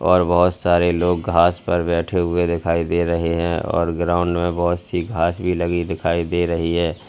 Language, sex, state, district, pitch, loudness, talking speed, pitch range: Hindi, male, Uttar Pradesh, Lalitpur, 85 Hz, -19 LUFS, 205 wpm, 85-90 Hz